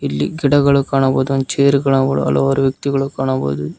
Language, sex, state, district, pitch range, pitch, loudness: Kannada, male, Karnataka, Koppal, 130-140 Hz, 135 Hz, -16 LUFS